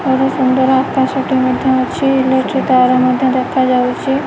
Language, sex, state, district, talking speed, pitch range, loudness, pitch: Odia, female, Odisha, Nuapada, 170 wpm, 255-270 Hz, -13 LUFS, 260 Hz